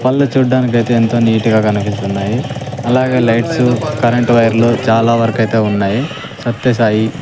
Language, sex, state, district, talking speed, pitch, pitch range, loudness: Telugu, male, Andhra Pradesh, Sri Satya Sai, 125 wpm, 120 Hz, 110-125 Hz, -13 LUFS